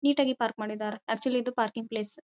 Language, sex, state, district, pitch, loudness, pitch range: Kannada, female, Karnataka, Dharwad, 230 Hz, -30 LUFS, 215-260 Hz